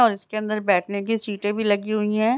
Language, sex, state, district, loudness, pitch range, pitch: Hindi, female, Bihar, Begusarai, -23 LUFS, 205-215 Hz, 215 Hz